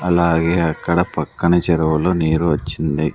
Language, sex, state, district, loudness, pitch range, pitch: Telugu, male, Andhra Pradesh, Sri Satya Sai, -18 LUFS, 80-85 Hz, 85 Hz